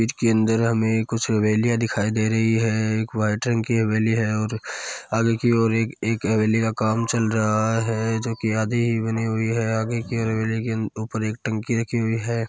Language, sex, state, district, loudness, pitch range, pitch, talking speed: Hindi, male, Rajasthan, Churu, -22 LUFS, 110-115 Hz, 110 Hz, 205 wpm